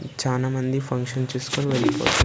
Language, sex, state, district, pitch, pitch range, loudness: Telugu, male, Andhra Pradesh, Sri Satya Sai, 130 Hz, 130-135 Hz, -24 LUFS